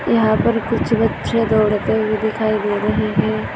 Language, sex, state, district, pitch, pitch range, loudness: Hindi, female, Maharashtra, Aurangabad, 215 Hz, 215-225 Hz, -18 LUFS